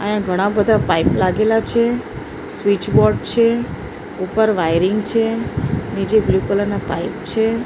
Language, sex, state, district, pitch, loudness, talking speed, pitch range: Gujarati, female, Maharashtra, Mumbai Suburban, 210 Hz, -17 LUFS, 135 wpm, 195-225 Hz